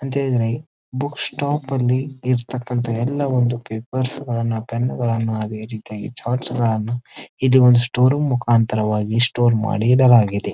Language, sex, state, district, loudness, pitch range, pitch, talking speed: Kannada, male, Karnataka, Dharwad, -19 LUFS, 115-130 Hz, 120 Hz, 115 wpm